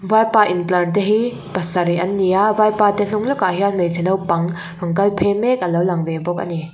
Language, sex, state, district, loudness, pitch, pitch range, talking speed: Mizo, female, Mizoram, Aizawl, -17 LUFS, 185 Hz, 175-205 Hz, 230 wpm